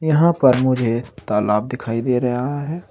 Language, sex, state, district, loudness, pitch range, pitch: Hindi, male, Uttar Pradesh, Saharanpur, -19 LUFS, 115-145 Hz, 125 Hz